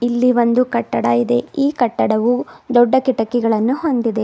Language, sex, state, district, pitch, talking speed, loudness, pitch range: Kannada, female, Karnataka, Bidar, 240 Hz, 125 wpm, -16 LUFS, 220-250 Hz